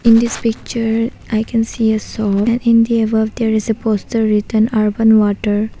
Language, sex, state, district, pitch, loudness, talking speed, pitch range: English, female, Arunachal Pradesh, Papum Pare, 220 Hz, -15 LUFS, 195 wpm, 215-230 Hz